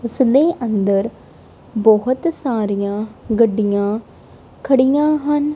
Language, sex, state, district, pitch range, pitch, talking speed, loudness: Punjabi, female, Punjab, Kapurthala, 210-280 Hz, 235 Hz, 75 wpm, -17 LUFS